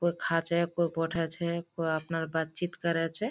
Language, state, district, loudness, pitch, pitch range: Surjapuri, Bihar, Kishanganj, -31 LUFS, 165 Hz, 165-170 Hz